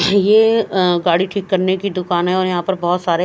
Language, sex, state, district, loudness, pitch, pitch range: Hindi, female, Himachal Pradesh, Shimla, -16 LUFS, 185 Hz, 175-200 Hz